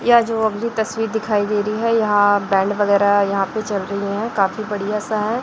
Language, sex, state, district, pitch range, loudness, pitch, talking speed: Hindi, female, Chhattisgarh, Raipur, 200-220 Hz, -19 LUFS, 210 Hz, 220 wpm